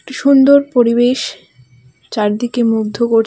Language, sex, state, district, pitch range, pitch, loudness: Bengali, female, West Bengal, Alipurduar, 210-255 Hz, 235 Hz, -13 LUFS